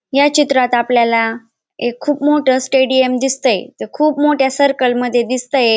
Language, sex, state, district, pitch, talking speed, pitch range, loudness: Marathi, female, Maharashtra, Dhule, 260 Hz, 145 wpm, 245-285 Hz, -14 LUFS